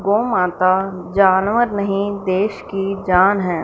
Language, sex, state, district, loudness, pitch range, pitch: Hindi, female, Punjab, Fazilka, -17 LUFS, 185-200 Hz, 195 Hz